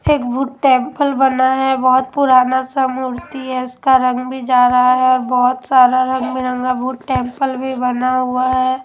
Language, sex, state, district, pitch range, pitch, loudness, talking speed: Hindi, female, Odisha, Malkangiri, 255-260 Hz, 255 Hz, -15 LUFS, 185 wpm